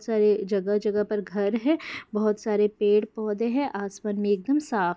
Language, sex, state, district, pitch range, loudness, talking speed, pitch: Hindi, female, Bihar, Jahanabad, 205-225 Hz, -25 LUFS, 180 wpm, 210 Hz